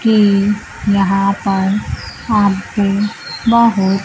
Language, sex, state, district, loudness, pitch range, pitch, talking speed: Hindi, female, Bihar, Kaimur, -15 LUFS, 195-215 Hz, 200 Hz, 75 wpm